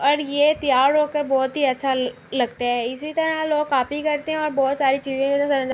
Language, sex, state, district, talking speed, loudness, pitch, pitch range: Urdu, female, Andhra Pradesh, Anantapur, 165 wpm, -21 LUFS, 280 Hz, 265-300 Hz